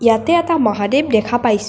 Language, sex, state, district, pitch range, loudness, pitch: Assamese, female, Assam, Kamrup Metropolitan, 215-290 Hz, -15 LUFS, 235 Hz